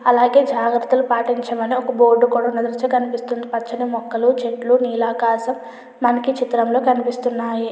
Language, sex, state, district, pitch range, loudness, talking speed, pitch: Telugu, female, Andhra Pradesh, Chittoor, 235-250 Hz, -18 LUFS, 115 wpm, 240 Hz